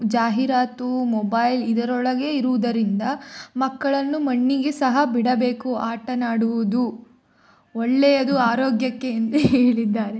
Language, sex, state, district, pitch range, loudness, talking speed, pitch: Kannada, female, Karnataka, Mysore, 230-265 Hz, -21 LUFS, 75 wpm, 250 Hz